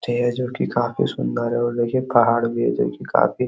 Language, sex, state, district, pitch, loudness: Hindi, male, Uttar Pradesh, Hamirpur, 120 Hz, -21 LUFS